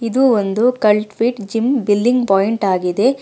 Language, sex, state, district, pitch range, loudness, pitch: Kannada, female, Karnataka, Bangalore, 205-250 Hz, -16 LUFS, 225 Hz